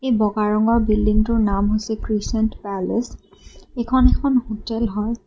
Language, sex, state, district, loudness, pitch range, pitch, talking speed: Assamese, female, Assam, Kamrup Metropolitan, -20 LUFS, 210-230 Hz, 220 Hz, 135 wpm